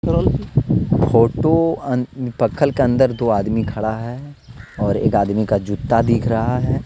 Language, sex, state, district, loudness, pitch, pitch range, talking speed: Hindi, male, Jharkhand, Deoghar, -18 LUFS, 115 Hz, 110-130 Hz, 140 wpm